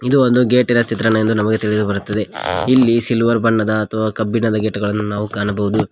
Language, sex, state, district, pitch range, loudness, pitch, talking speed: Kannada, male, Karnataka, Koppal, 105-115 Hz, -16 LUFS, 110 Hz, 170 wpm